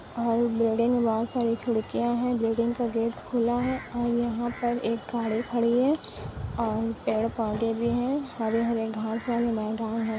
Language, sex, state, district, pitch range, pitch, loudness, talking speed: Hindi, female, Bihar, Kishanganj, 225-240 Hz, 235 Hz, -27 LUFS, 175 wpm